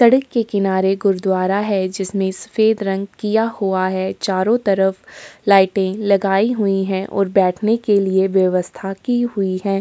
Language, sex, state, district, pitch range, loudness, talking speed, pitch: Hindi, female, Uttar Pradesh, Jyotiba Phule Nagar, 190-210 Hz, -18 LUFS, 155 wpm, 195 Hz